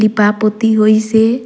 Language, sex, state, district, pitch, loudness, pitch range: Surgujia, female, Chhattisgarh, Sarguja, 215 Hz, -12 LUFS, 215-220 Hz